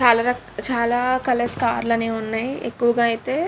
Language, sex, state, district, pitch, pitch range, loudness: Telugu, female, Andhra Pradesh, Krishna, 240 Hz, 230-250 Hz, -21 LUFS